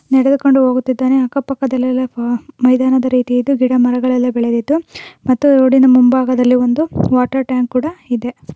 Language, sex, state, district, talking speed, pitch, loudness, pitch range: Kannada, female, Karnataka, Bijapur, 105 wpm, 255 Hz, -14 LUFS, 250-265 Hz